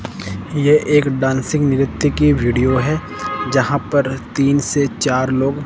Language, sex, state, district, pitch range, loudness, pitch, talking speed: Hindi, male, Chandigarh, Chandigarh, 130-145 Hz, -17 LUFS, 140 Hz, 140 wpm